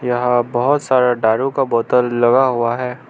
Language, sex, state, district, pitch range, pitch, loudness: Hindi, male, Arunachal Pradesh, Lower Dibang Valley, 120-130 Hz, 125 Hz, -16 LUFS